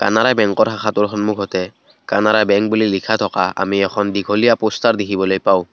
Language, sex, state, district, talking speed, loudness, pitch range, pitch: Assamese, male, Assam, Kamrup Metropolitan, 155 wpm, -16 LUFS, 100-110 Hz, 105 Hz